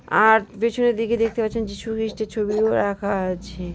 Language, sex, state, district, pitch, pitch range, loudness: Bengali, female, West Bengal, Jhargram, 220 Hz, 200-225 Hz, -22 LUFS